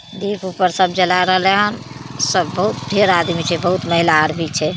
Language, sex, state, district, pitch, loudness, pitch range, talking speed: Maithili, female, Bihar, Samastipur, 180 Hz, -16 LUFS, 165-185 Hz, 200 wpm